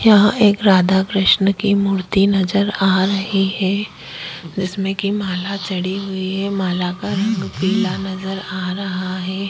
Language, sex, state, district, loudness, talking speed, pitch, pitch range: Hindi, female, Maharashtra, Chandrapur, -18 LUFS, 150 wpm, 195 Hz, 185-200 Hz